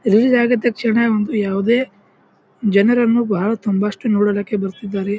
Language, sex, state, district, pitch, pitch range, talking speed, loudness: Kannada, male, Karnataka, Bijapur, 210 Hz, 205-235 Hz, 125 wpm, -17 LUFS